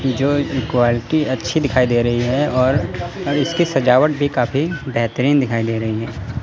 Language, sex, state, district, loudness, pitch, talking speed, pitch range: Hindi, male, Chandigarh, Chandigarh, -18 LUFS, 130 Hz, 160 wpm, 120-145 Hz